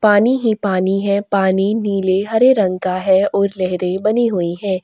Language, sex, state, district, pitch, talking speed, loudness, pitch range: Hindi, female, Chhattisgarh, Korba, 195 Hz, 185 wpm, -16 LUFS, 185-210 Hz